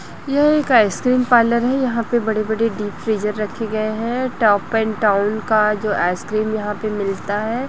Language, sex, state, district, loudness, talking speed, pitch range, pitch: Hindi, female, Chhattisgarh, Raipur, -18 LUFS, 180 wpm, 210-235 Hz, 220 Hz